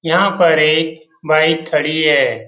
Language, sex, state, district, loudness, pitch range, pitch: Hindi, male, Bihar, Jamui, -14 LUFS, 155-165 Hz, 160 Hz